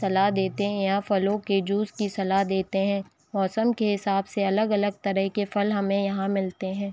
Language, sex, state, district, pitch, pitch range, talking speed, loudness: Hindi, female, Chhattisgarh, Raigarh, 200 Hz, 195-205 Hz, 200 wpm, -25 LUFS